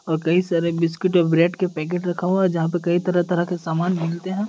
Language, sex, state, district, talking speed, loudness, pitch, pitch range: Hindi, male, Uttar Pradesh, Deoria, 265 wpm, -21 LUFS, 175 Hz, 165-180 Hz